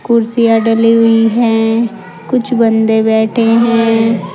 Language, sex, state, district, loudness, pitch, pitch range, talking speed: Hindi, female, Uttar Pradesh, Saharanpur, -11 LUFS, 225 Hz, 225-230 Hz, 110 wpm